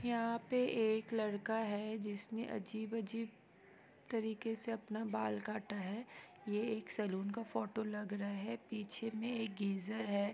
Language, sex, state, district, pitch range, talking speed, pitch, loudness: Hindi, female, Bihar, East Champaran, 205-225 Hz, 150 wpm, 220 Hz, -41 LUFS